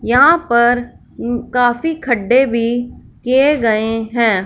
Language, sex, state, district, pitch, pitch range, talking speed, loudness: Hindi, female, Punjab, Fazilka, 240 Hz, 230-260 Hz, 120 wpm, -15 LUFS